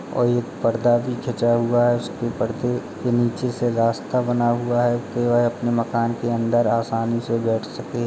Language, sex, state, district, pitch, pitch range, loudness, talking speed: Hindi, male, Uttar Pradesh, Jalaun, 120 Hz, 115-120 Hz, -21 LUFS, 195 wpm